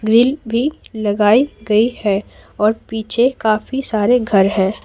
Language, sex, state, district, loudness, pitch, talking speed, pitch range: Hindi, female, Bihar, Patna, -16 LUFS, 220 Hz, 135 wpm, 210-240 Hz